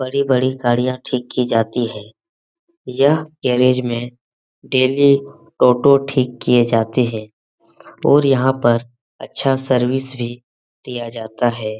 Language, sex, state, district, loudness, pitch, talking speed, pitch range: Hindi, male, Bihar, Jamui, -17 LUFS, 125 Hz, 120 wpm, 120-135 Hz